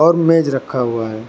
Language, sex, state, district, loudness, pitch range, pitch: Hindi, male, Karnataka, Bangalore, -16 LUFS, 115-165 Hz, 135 Hz